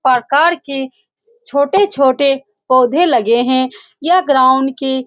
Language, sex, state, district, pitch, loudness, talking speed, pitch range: Hindi, female, Bihar, Saran, 270 Hz, -13 LUFS, 120 wpm, 260-325 Hz